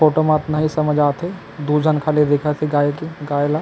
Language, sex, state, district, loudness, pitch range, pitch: Chhattisgarhi, male, Chhattisgarh, Kabirdham, -18 LUFS, 145-155 Hz, 150 Hz